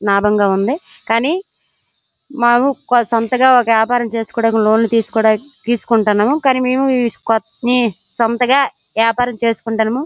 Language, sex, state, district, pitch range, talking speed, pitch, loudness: Telugu, female, Andhra Pradesh, Srikakulam, 220-250 Hz, 95 wpm, 230 Hz, -15 LUFS